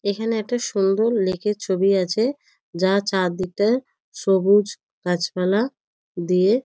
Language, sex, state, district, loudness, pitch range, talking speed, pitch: Bengali, female, West Bengal, North 24 Parganas, -21 LUFS, 185-220 Hz, 115 wpm, 200 Hz